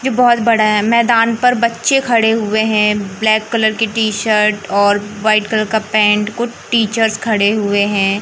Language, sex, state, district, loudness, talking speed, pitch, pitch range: Hindi, male, Madhya Pradesh, Katni, -14 LUFS, 180 wpm, 215 Hz, 210-230 Hz